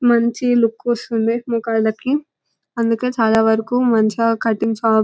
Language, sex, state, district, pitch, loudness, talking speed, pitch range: Telugu, female, Telangana, Nalgonda, 230 Hz, -18 LUFS, 130 wpm, 225-240 Hz